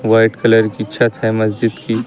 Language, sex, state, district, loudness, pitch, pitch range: Hindi, male, Uttar Pradesh, Lucknow, -15 LUFS, 115 Hz, 110-115 Hz